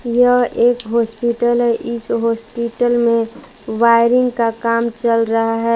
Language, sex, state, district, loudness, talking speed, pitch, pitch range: Hindi, female, Jharkhand, Palamu, -16 LUFS, 135 wpm, 235 Hz, 230-240 Hz